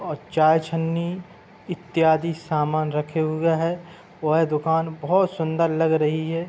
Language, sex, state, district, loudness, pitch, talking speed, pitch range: Hindi, male, Uttar Pradesh, Hamirpur, -22 LUFS, 160 Hz, 140 wpm, 155-170 Hz